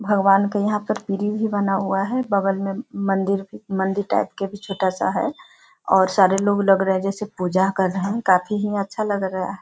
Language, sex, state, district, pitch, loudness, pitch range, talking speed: Hindi, female, Bihar, Sitamarhi, 195 Hz, -21 LUFS, 195-210 Hz, 220 wpm